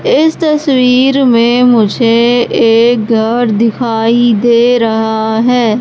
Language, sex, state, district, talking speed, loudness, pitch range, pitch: Hindi, female, Madhya Pradesh, Katni, 105 wpm, -10 LUFS, 225-250 Hz, 235 Hz